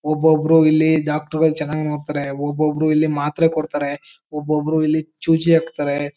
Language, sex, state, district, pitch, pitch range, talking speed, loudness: Kannada, male, Karnataka, Chamarajanagar, 155 Hz, 150-160 Hz, 135 wpm, -18 LUFS